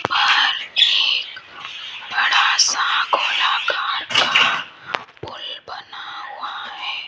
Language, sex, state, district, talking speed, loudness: Hindi, female, Rajasthan, Jaipur, 85 wpm, -17 LUFS